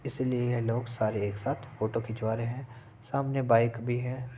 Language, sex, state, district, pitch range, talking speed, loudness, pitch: Hindi, male, Uttar Pradesh, Etah, 115-130 Hz, 190 wpm, -30 LUFS, 120 Hz